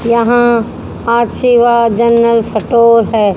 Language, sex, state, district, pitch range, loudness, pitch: Hindi, female, Haryana, Rohtak, 230-235 Hz, -10 LUFS, 235 Hz